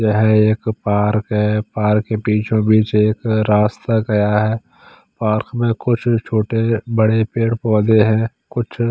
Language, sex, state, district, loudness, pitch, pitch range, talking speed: Hindi, male, Chandigarh, Chandigarh, -17 LUFS, 110 Hz, 105-115 Hz, 150 wpm